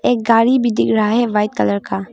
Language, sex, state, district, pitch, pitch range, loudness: Hindi, female, Arunachal Pradesh, Longding, 225 Hz, 210-235 Hz, -15 LUFS